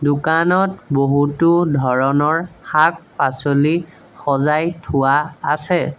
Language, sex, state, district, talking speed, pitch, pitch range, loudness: Assamese, male, Assam, Sonitpur, 70 wpm, 150 Hz, 140-165 Hz, -17 LUFS